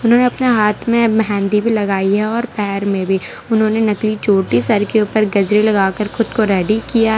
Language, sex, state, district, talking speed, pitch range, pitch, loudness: Hindi, female, Gujarat, Valsad, 215 wpm, 200-225 Hz, 215 Hz, -15 LUFS